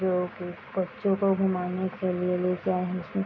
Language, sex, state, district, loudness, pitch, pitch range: Hindi, female, Bihar, Madhepura, -28 LUFS, 180 Hz, 180-190 Hz